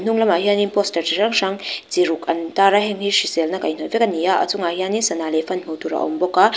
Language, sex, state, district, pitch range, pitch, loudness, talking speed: Mizo, female, Mizoram, Aizawl, 170-205 Hz, 190 Hz, -19 LUFS, 295 wpm